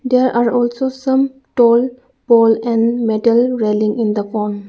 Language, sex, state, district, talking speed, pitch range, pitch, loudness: English, female, Arunachal Pradesh, Lower Dibang Valley, 155 wpm, 220-255 Hz, 235 Hz, -15 LUFS